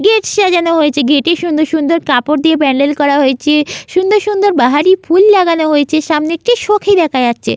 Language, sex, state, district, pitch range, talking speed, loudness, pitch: Bengali, female, West Bengal, Malda, 290-375 Hz, 190 wpm, -11 LUFS, 320 Hz